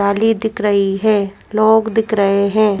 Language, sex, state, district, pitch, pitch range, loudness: Hindi, female, Madhya Pradesh, Bhopal, 210 Hz, 200-220 Hz, -15 LUFS